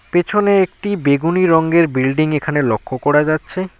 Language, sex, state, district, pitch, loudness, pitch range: Bengali, male, West Bengal, Alipurduar, 160 Hz, -16 LUFS, 145-185 Hz